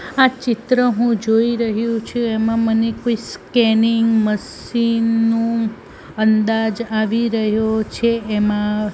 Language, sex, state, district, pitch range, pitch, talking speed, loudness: Gujarati, female, Gujarat, Gandhinagar, 220-235 Hz, 225 Hz, 115 wpm, -18 LUFS